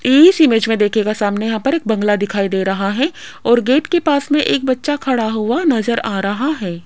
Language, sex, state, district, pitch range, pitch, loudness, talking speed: Hindi, female, Rajasthan, Jaipur, 210-290 Hz, 230 Hz, -16 LUFS, 225 wpm